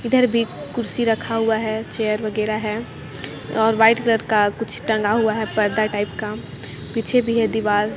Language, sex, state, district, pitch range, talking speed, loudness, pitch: Hindi, female, Jharkhand, Jamtara, 205-225 Hz, 180 wpm, -20 LUFS, 220 Hz